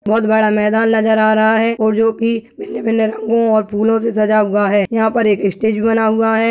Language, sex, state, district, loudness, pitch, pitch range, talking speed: Hindi, female, Uttar Pradesh, Budaun, -14 LUFS, 220 Hz, 215-225 Hz, 220 wpm